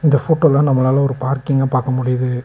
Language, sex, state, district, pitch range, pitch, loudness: Tamil, male, Tamil Nadu, Nilgiris, 130-140 Hz, 135 Hz, -16 LUFS